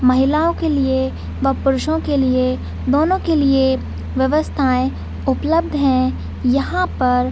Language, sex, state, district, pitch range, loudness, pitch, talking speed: Hindi, female, Chhattisgarh, Bilaspur, 255-305 Hz, -18 LUFS, 270 Hz, 125 wpm